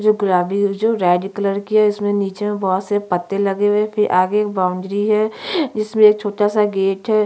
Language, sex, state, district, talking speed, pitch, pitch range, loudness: Hindi, female, Chhattisgarh, Sukma, 225 wpm, 205 Hz, 195-215 Hz, -17 LUFS